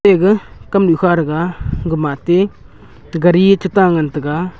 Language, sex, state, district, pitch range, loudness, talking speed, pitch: Wancho, male, Arunachal Pradesh, Longding, 165-190 Hz, -14 LUFS, 145 wpm, 175 Hz